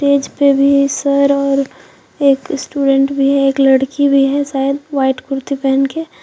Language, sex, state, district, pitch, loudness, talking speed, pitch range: Hindi, female, Jharkhand, Deoghar, 275 Hz, -14 LUFS, 165 wpm, 270-280 Hz